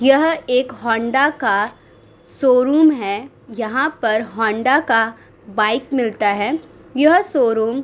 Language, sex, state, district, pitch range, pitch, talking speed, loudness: Hindi, female, Uttar Pradesh, Muzaffarnagar, 220-275 Hz, 250 Hz, 120 wpm, -17 LUFS